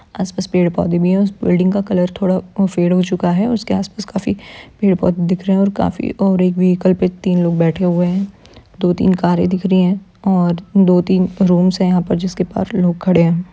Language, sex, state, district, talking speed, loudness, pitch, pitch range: Hindi, female, Bihar, Supaul, 215 wpm, -16 LUFS, 185 Hz, 180-195 Hz